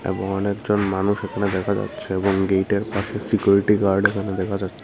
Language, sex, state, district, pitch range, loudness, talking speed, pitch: Bengali, male, Tripura, Unakoti, 95-100 Hz, -21 LUFS, 175 wpm, 100 Hz